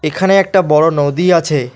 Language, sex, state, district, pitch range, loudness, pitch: Bengali, male, West Bengal, Alipurduar, 150-185 Hz, -12 LUFS, 165 Hz